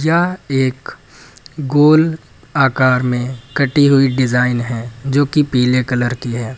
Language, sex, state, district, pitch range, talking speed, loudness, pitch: Hindi, male, Uttar Pradesh, Lucknow, 125-145 Hz, 130 wpm, -15 LUFS, 130 Hz